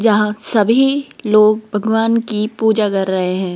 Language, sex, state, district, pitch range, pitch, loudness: Hindi, female, Rajasthan, Jaipur, 210-225 Hz, 215 Hz, -15 LUFS